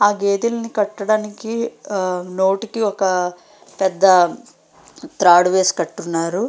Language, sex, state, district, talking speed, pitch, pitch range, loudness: Telugu, female, Andhra Pradesh, Srikakulam, 90 wpm, 195 Hz, 180-215 Hz, -18 LUFS